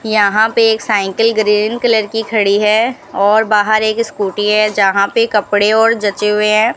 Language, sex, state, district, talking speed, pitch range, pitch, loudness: Hindi, female, Rajasthan, Bikaner, 185 wpm, 205-225 Hz, 215 Hz, -13 LUFS